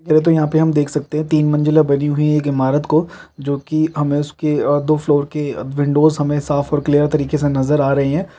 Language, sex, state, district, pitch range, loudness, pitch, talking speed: Hindi, male, Chhattisgarh, Raigarh, 145-155 Hz, -16 LUFS, 150 Hz, 245 wpm